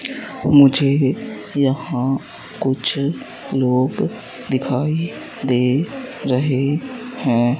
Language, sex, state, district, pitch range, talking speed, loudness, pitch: Hindi, male, Madhya Pradesh, Katni, 130-160 Hz, 65 wpm, -19 LUFS, 140 Hz